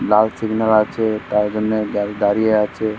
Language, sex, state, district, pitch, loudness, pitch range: Bengali, male, West Bengal, Purulia, 110 Hz, -18 LUFS, 105-110 Hz